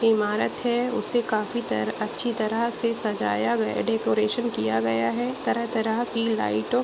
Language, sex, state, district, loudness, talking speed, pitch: Hindi, female, Jharkhand, Sahebganj, -25 LUFS, 150 wpm, 225 Hz